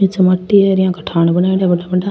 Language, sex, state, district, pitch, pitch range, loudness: Rajasthani, female, Rajasthan, Churu, 185 Hz, 180-190 Hz, -14 LUFS